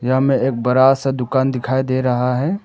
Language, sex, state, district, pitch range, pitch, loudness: Hindi, male, Arunachal Pradesh, Papum Pare, 125-135 Hz, 130 Hz, -17 LUFS